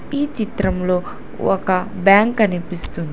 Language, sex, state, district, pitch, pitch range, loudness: Telugu, female, Telangana, Hyderabad, 190 Hz, 180-215 Hz, -18 LUFS